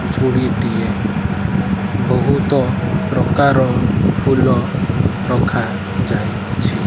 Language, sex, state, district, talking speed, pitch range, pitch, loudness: Odia, male, Odisha, Malkangiri, 60 wpm, 125-155 Hz, 130 Hz, -16 LUFS